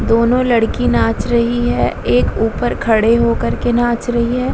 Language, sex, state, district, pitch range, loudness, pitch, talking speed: Hindi, female, Bihar, Vaishali, 225-240 Hz, -15 LUFS, 235 Hz, 170 wpm